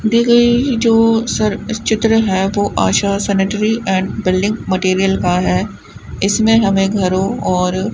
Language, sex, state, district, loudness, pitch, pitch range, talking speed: Hindi, female, Rajasthan, Bikaner, -15 LUFS, 205 Hz, 190-225 Hz, 145 wpm